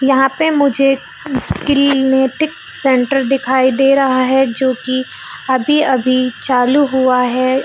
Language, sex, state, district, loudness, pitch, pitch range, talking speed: Hindi, female, Jharkhand, Sahebganj, -14 LUFS, 265 Hz, 255-275 Hz, 125 wpm